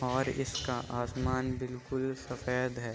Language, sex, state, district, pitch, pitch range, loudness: Hindi, male, Uttar Pradesh, Jyotiba Phule Nagar, 125 Hz, 125-130 Hz, -34 LUFS